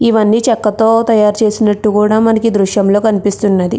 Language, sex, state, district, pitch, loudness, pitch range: Telugu, female, Andhra Pradesh, Krishna, 215 Hz, -11 LUFS, 205-225 Hz